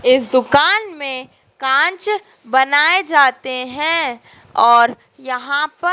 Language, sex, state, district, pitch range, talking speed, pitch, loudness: Hindi, female, Madhya Pradesh, Dhar, 255-330 Hz, 100 wpm, 280 Hz, -15 LUFS